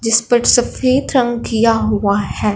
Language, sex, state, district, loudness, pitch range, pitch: Hindi, female, Punjab, Fazilka, -14 LUFS, 215-245 Hz, 230 Hz